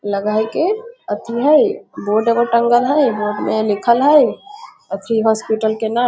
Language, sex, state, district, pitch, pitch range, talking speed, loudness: Maithili, female, Bihar, Muzaffarpur, 230 Hz, 215-275 Hz, 165 wpm, -16 LUFS